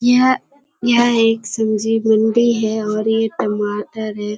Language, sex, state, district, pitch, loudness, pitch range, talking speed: Hindi, female, Bihar, Kishanganj, 225 Hz, -17 LUFS, 215-235 Hz, 150 wpm